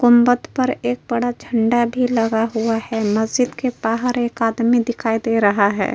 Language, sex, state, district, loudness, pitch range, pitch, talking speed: Hindi, female, Uttar Pradesh, Hamirpur, -18 LUFS, 225-245 Hz, 235 Hz, 180 wpm